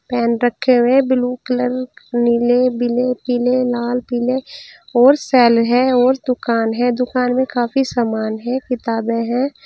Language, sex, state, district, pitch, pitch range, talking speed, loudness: Hindi, female, Uttar Pradesh, Saharanpur, 245 Hz, 240-255 Hz, 145 wpm, -16 LUFS